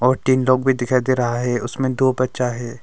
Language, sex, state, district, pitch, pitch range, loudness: Hindi, male, Arunachal Pradesh, Longding, 130 Hz, 120-130 Hz, -19 LUFS